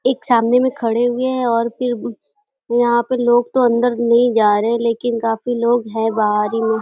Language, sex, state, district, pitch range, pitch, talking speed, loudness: Hindi, female, Uttar Pradesh, Deoria, 230-245 Hz, 235 Hz, 220 wpm, -17 LUFS